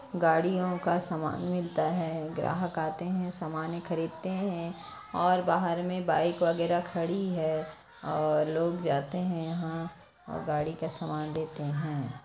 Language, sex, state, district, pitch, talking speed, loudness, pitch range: Hindi, female, Chhattisgarh, Jashpur, 165 Hz, 140 wpm, -31 LUFS, 160-180 Hz